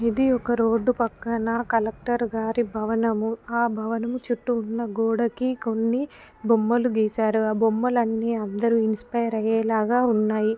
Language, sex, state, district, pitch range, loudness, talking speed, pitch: Telugu, female, Telangana, Karimnagar, 225-235 Hz, -24 LUFS, 120 wpm, 230 Hz